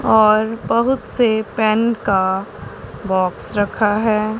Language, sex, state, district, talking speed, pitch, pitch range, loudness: Hindi, female, Punjab, Pathankot, 110 wpm, 215 Hz, 200-220 Hz, -17 LUFS